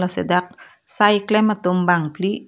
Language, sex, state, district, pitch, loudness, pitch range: Karbi, female, Assam, Karbi Anglong, 195 Hz, -18 LUFS, 180-215 Hz